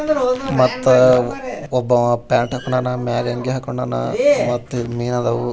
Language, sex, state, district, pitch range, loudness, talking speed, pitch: Kannada, male, Karnataka, Bijapur, 120-130 Hz, -18 LUFS, 120 wpm, 125 Hz